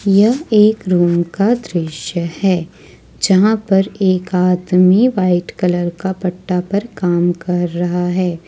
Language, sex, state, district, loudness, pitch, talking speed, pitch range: Hindi, female, Jharkhand, Ranchi, -15 LUFS, 180 Hz, 135 wpm, 175-195 Hz